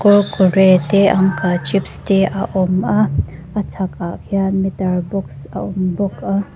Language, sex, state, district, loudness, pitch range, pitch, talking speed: Mizo, female, Mizoram, Aizawl, -16 LUFS, 180-195 Hz, 190 Hz, 165 wpm